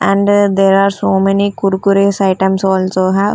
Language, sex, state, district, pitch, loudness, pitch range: English, female, Punjab, Fazilka, 195 Hz, -12 LUFS, 190-200 Hz